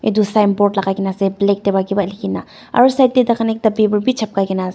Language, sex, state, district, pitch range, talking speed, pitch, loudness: Nagamese, female, Nagaland, Dimapur, 195-220 Hz, 240 wpm, 205 Hz, -16 LUFS